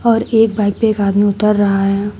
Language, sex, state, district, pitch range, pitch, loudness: Hindi, female, Uttar Pradesh, Shamli, 200-225 Hz, 210 Hz, -14 LUFS